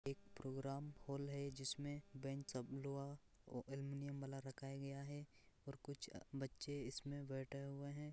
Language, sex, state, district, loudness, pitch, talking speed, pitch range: Hindi, male, Bihar, Purnia, -50 LUFS, 140 Hz, 145 wpm, 135-140 Hz